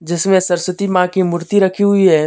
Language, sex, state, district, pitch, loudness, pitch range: Hindi, male, Jharkhand, Deoghar, 185 Hz, -14 LUFS, 175-195 Hz